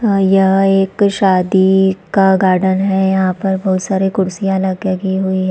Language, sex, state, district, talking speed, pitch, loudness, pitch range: Hindi, female, Chhattisgarh, Bastar, 155 wpm, 190 Hz, -14 LUFS, 190-195 Hz